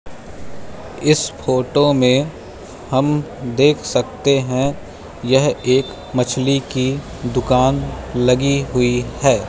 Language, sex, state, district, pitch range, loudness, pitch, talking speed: Hindi, male, Madhya Pradesh, Katni, 125-140 Hz, -17 LUFS, 130 Hz, 95 wpm